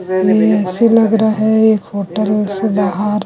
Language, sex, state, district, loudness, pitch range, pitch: Hindi, female, Chhattisgarh, Raipur, -14 LUFS, 200-220 Hz, 210 Hz